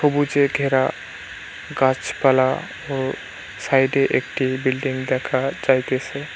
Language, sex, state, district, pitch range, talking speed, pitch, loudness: Bengali, male, West Bengal, Cooch Behar, 130-140 Hz, 85 wpm, 135 Hz, -20 LUFS